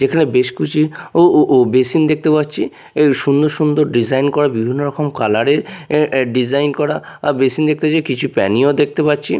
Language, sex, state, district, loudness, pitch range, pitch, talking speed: Bengali, male, Odisha, Nuapada, -15 LUFS, 135-150 Hz, 145 Hz, 190 wpm